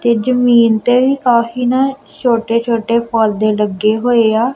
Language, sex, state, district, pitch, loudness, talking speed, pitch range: Punjabi, female, Punjab, Kapurthala, 235 Hz, -13 LUFS, 130 wpm, 225-245 Hz